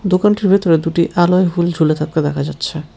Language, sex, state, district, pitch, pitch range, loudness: Bengali, male, West Bengal, Cooch Behar, 170 Hz, 155-185 Hz, -15 LUFS